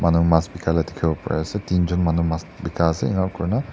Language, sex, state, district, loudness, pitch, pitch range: Nagamese, male, Nagaland, Dimapur, -22 LUFS, 85 Hz, 80-90 Hz